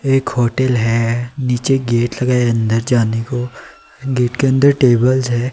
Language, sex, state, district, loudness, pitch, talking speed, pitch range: Hindi, male, Himachal Pradesh, Shimla, -15 LUFS, 125 Hz, 160 wpm, 120-130 Hz